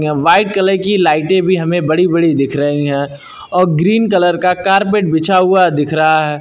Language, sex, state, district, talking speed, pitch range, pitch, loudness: Hindi, male, Uttar Pradesh, Lucknow, 195 wpm, 155-190 Hz, 175 Hz, -12 LUFS